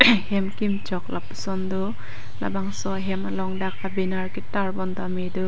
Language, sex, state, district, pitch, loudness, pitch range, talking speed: Karbi, female, Assam, Karbi Anglong, 190 Hz, -27 LUFS, 180-195 Hz, 155 wpm